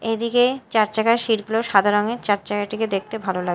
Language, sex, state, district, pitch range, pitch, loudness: Bengali, female, Odisha, Malkangiri, 205-230 Hz, 220 Hz, -21 LUFS